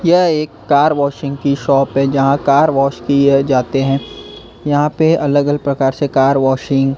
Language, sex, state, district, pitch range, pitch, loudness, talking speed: Hindi, male, Maharashtra, Gondia, 135-145 Hz, 140 Hz, -14 LUFS, 190 wpm